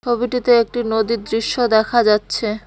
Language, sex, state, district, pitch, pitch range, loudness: Bengali, female, West Bengal, Cooch Behar, 230 Hz, 220-240 Hz, -17 LUFS